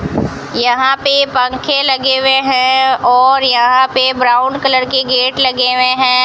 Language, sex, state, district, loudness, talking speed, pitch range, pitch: Hindi, female, Rajasthan, Bikaner, -11 LUFS, 155 wpm, 255-265 Hz, 260 Hz